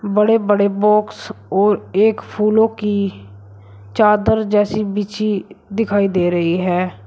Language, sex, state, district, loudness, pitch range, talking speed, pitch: Hindi, male, Uttar Pradesh, Shamli, -17 LUFS, 180-210 Hz, 120 wpm, 205 Hz